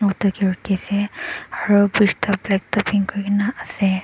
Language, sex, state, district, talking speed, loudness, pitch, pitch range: Nagamese, male, Nagaland, Dimapur, 135 wpm, -20 LUFS, 205 Hz, 195-205 Hz